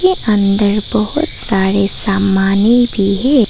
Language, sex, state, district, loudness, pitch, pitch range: Hindi, female, Arunachal Pradesh, Papum Pare, -13 LUFS, 205 Hz, 195-240 Hz